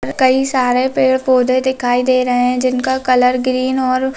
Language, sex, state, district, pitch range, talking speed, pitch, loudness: Hindi, female, Bihar, Saharsa, 250-260 Hz, 170 wpm, 255 Hz, -14 LUFS